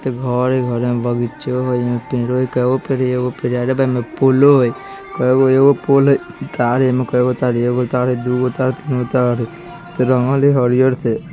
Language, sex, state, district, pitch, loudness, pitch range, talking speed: Bajjika, male, Bihar, Vaishali, 125 Hz, -16 LUFS, 125-130 Hz, 265 wpm